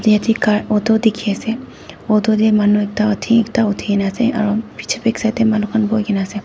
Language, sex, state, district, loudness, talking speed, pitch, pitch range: Nagamese, female, Nagaland, Dimapur, -16 LUFS, 225 wpm, 215 Hz, 210-225 Hz